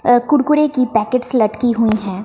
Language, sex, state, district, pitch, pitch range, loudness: Hindi, female, Bihar, West Champaran, 245 Hz, 215-255 Hz, -15 LUFS